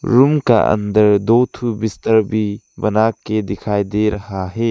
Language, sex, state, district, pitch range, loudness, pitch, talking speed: Hindi, male, Arunachal Pradesh, Lower Dibang Valley, 105-115 Hz, -16 LUFS, 110 Hz, 150 wpm